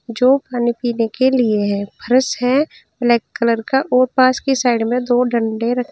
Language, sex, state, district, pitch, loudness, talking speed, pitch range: Hindi, female, Uttar Pradesh, Saharanpur, 245 Hz, -17 LUFS, 190 wpm, 235-255 Hz